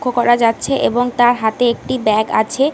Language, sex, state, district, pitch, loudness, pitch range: Bengali, female, West Bengal, Kolkata, 240 Hz, -15 LUFS, 225-250 Hz